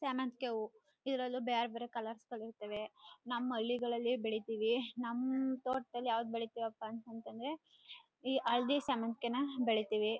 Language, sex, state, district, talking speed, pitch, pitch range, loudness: Kannada, female, Karnataka, Chamarajanagar, 120 wpm, 235 Hz, 225-255 Hz, -38 LUFS